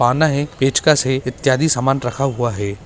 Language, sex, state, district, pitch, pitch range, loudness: Hindi, male, Maharashtra, Pune, 135 Hz, 125-145 Hz, -17 LUFS